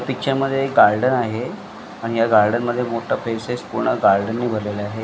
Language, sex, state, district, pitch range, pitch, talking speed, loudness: Marathi, male, Maharashtra, Mumbai Suburban, 110-130 Hz, 115 Hz, 165 wpm, -19 LUFS